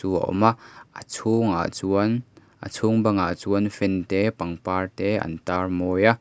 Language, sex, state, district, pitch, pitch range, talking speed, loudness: Mizo, male, Mizoram, Aizawl, 100 Hz, 95-110 Hz, 155 wpm, -23 LUFS